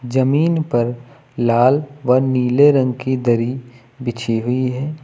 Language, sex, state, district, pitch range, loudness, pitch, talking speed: Hindi, male, Uttar Pradesh, Lucknow, 120-140 Hz, -17 LUFS, 125 Hz, 130 wpm